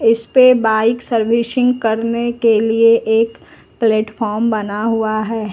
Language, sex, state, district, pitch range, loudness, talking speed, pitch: Hindi, female, Uttar Pradesh, Lucknow, 220-235 Hz, -15 LUFS, 130 wpm, 225 Hz